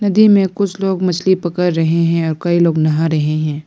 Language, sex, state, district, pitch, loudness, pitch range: Hindi, female, Arunachal Pradesh, Lower Dibang Valley, 175 Hz, -15 LUFS, 160-190 Hz